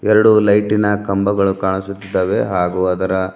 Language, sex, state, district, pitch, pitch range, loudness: Kannada, male, Karnataka, Bidar, 100 Hz, 95-105 Hz, -16 LUFS